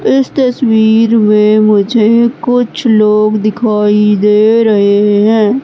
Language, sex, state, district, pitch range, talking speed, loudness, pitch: Hindi, female, Madhya Pradesh, Katni, 210-230 Hz, 105 wpm, -9 LUFS, 215 Hz